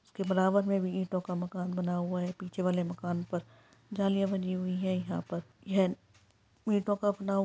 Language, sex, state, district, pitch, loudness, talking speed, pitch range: Hindi, female, Jharkhand, Sahebganj, 185 Hz, -32 LUFS, 210 wpm, 175-195 Hz